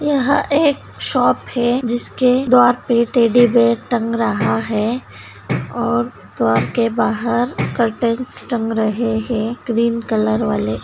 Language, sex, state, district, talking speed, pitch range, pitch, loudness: Hindi, female, Bihar, Begusarai, 125 wpm, 230-245 Hz, 235 Hz, -17 LUFS